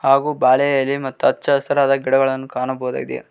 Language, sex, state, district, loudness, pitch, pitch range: Kannada, male, Karnataka, Koppal, -18 LUFS, 135 Hz, 130-140 Hz